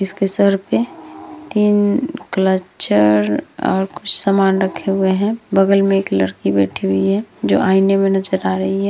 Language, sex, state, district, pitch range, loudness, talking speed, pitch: Hindi, female, Uttar Pradesh, Hamirpur, 140-200 Hz, -16 LUFS, 170 wpm, 195 Hz